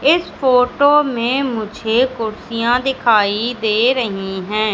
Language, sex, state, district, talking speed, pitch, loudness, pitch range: Hindi, female, Madhya Pradesh, Katni, 115 wpm, 235 Hz, -16 LUFS, 215-260 Hz